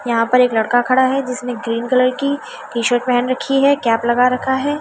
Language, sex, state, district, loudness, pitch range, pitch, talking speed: Hindi, female, Delhi, New Delhi, -16 LUFS, 240-265 Hz, 250 Hz, 235 wpm